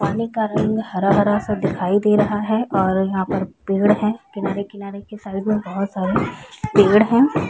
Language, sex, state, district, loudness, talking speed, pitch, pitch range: Hindi, female, Chhattisgarh, Rajnandgaon, -19 LUFS, 190 wpm, 200 Hz, 195-210 Hz